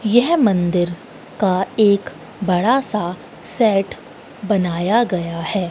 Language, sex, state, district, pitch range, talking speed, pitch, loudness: Hindi, female, Madhya Pradesh, Katni, 180-220 Hz, 105 wpm, 195 Hz, -18 LUFS